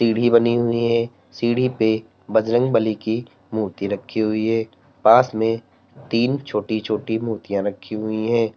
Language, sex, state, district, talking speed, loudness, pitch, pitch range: Hindi, male, Uttar Pradesh, Lalitpur, 155 wpm, -21 LUFS, 110 Hz, 110-120 Hz